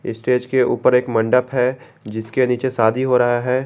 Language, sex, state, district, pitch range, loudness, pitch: Hindi, male, Jharkhand, Garhwa, 120-130 Hz, -18 LUFS, 125 Hz